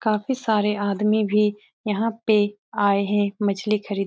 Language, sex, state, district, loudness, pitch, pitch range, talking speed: Hindi, female, Bihar, Supaul, -22 LUFS, 210 Hz, 205-215 Hz, 160 wpm